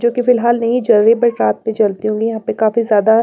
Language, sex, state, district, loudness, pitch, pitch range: Hindi, female, Bihar, Patna, -14 LUFS, 225 Hz, 220-235 Hz